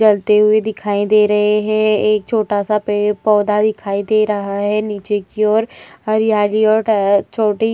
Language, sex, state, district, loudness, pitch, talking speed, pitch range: Hindi, female, Uttar Pradesh, Hamirpur, -15 LUFS, 210 Hz, 170 wpm, 205-215 Hz